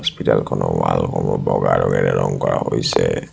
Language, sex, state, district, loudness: Assamese, male, Assam, Sonitpur, -18 LUFS